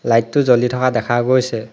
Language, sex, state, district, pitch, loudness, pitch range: Assamese, male, Assam, Hailakandi, 120 Hz, -16 LUFS, 115-130 Hz